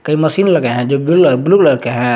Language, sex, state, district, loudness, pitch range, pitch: Hindi, male, Jharkhand, Garhwa, -12 LUFS, 125-175 Hz, 145 Hz